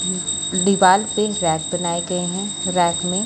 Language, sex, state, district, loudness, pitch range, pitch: Hindi, female, Haryana, Charkhi Dadri, -18 LUFS, 175-190 Hz, 180 Hz